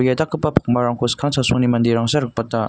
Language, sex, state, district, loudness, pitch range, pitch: Garo, male, Meghalaya, North Garo Hills, -18 LUFS, 120-145 Hz, 125 Hz